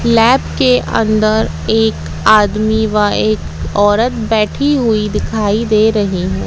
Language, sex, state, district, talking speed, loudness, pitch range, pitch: Hindi, female, Madhya Pradesh, Katni, 130 wpm, -13 LUFS, 210-225 Hz, 215 Hz